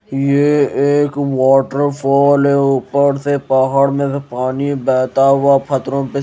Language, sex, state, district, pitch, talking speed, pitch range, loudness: Hindi, male, Odisha, Malkangiri, 140 Hz, 135 wpm, 135-140 Hz, -14 LUFS